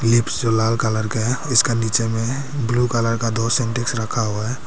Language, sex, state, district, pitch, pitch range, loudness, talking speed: Hindi, male, Arunachal Pradesh, Papum Pare, 115 Hz, 115-120 Hz, -20 LUFS, 195 wpm